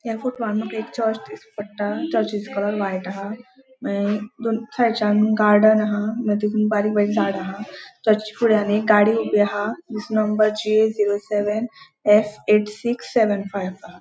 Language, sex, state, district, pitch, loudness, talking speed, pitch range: Konkani, female, Goa, North and South Goa, 215 Hz, -21 LUFS, 185 wpm, 205-225 Hz